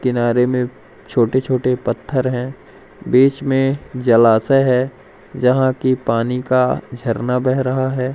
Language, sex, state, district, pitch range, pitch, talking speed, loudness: Hindi, male, Madhya Pradesh, Umaria, 125-130 Hz, 130 Hz, 125 wpm, -17 LUFS